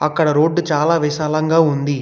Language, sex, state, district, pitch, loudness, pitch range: Telugu, male, Telangana, Hyderabad, 155 Hz, -16 LUFS, 150-160 Hz